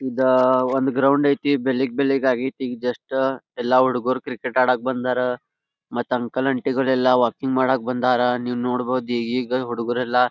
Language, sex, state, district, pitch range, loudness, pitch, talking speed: Kannada, male, Karnataka, Belgaum, 125-130 Hz, -21 LUFS, 130 Hz, 150 wpm